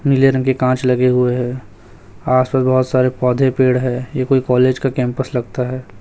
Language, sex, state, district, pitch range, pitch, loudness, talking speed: Hindi, male, Chhattisgarh, Raipur, 125-130 Hz, 130 Hz, -16 LUFS, 210 wpm